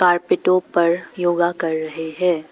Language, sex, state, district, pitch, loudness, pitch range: Hindi, female, Arunachal Pradesh, Papum Pare, 175 Hz, -19 LUFS, 160-180 Hz